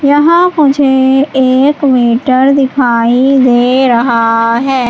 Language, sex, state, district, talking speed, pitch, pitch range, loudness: Hindi, female, Madhya Pradesh, Katni, 100 wpm, 260 Hz, 240-275 Hz, -9 LUFS